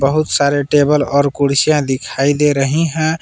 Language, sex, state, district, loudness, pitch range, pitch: Hindi, male, Jharkhand, Palamu, -14 LUFS, 140-150 Hz, 145 Hz